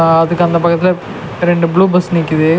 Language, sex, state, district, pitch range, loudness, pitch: Tamil, male, Tamil Nadu, Nilgiris, 165-175 Hz, -13 LUFS, 170 Hz